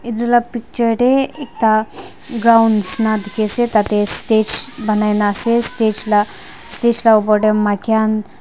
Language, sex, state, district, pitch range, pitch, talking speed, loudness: Nagamese, female, Nagaland, Dimapur, 210-235 Hz, 220 Hz, 155 wpm, -15 LUFS